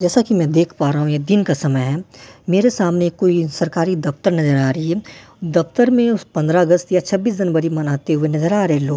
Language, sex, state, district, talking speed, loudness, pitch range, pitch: Hindi, male, Delhi, New Delhi, 240 wpm, -17 LUFS, 155-190 Hz, 170 Hz